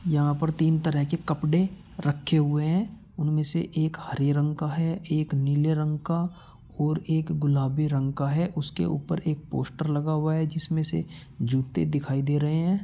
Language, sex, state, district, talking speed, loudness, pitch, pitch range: Hindi, male, Uttar Pradesh, Muzaffarnagar, 185 wpm, -27 LUFS, 155 Hz, 145-165 Hz